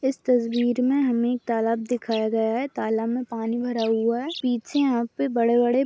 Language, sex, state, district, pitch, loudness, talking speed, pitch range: Hindi, female, Chhattisgarh, Bastar, 240 Hz, -24 LUFS, 205 wpm, 230-250 Hz